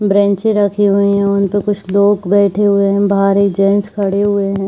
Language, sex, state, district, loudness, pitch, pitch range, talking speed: Hindi, female, Chhattisgarh, Bilaspur, -13 LUFS, 200 Hz, 200-205 Hz, 190 wpm